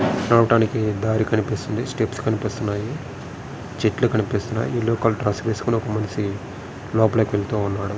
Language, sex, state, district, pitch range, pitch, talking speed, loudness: Telugu, male, Andhra Pradesh, Srikakulam, 105-115 Hz, 110 Hz, 120 wpm, -22 LUFS